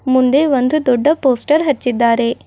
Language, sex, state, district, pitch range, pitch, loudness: Kannada, female, Karnataka, Bidar, 245-295 Hz, 260 Hz, -14 LUFS